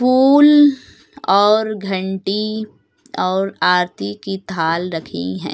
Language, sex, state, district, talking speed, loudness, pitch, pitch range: Hindi, female, Uttar Pradesh, Lucknow, 95 wpm, -16 LUFS, 195 Hz, 175-215 Hz